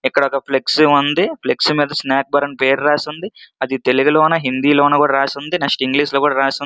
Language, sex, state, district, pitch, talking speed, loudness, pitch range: Telugu, male, Andhra Pradesh, Srikakulam, 145 Hz, 215 wpm, -15 LUFS, 135-150 Hz